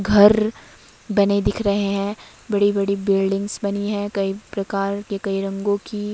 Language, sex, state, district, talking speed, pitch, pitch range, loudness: Hindi, female, Himachal Pradesh, Shimla, 155 wpm, 200 Hz, 195-205 Hz, -21 LUFS